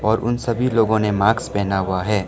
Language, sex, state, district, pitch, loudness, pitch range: Hindi, male, Arunachal Pradesh, Lower Dibang Valley, 110 Hz, -19 LUFS, 100-115 Hz